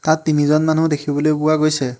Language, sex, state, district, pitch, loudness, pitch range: Assamese, male, Assam, Hailakandi, 155 Hz, -17 LUFS, 145-155 Hz